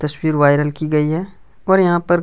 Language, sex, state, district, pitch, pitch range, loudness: Hindi, male, Chhattisgarh, Kabirdham, 155 Hz, 150-175 Hz, -16 LUFS